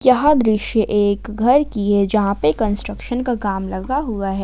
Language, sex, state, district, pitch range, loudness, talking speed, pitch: Hindi, female, Jharkhand, Ranchi, 200-245 Hz, -18 LUFS, 190 wpm, 215 Hz